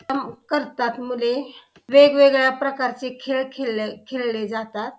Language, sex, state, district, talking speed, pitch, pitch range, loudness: Marathi, female, Maharashtra, Pune, 95 wpm, 255 Hz, 240-270 Hz, -21 LUFS